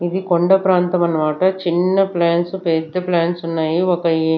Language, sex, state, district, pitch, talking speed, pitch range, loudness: Telugu, female, Andhra Pradesh, Sri Satya Sai, 175 Hz, 150 wpm, 165-185 Hz, -17 LUFS